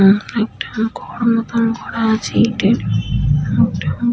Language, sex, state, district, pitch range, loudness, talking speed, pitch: Bengali, female, West Bengal, Paschim Medinipur, 220-230 Hz, -17 LUFS, 85 wpm, 225 Hz